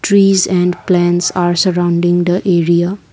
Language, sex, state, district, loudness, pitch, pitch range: English, female, Assam, Kamrup Metropolitan, -13 LUFS, 180 Hz, 175-185 Hz